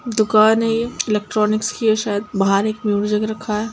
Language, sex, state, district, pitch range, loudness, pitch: Hindi, female, Bihar, Sitamarhi, 210-220 Hz, -18 LUFS, 215 Hz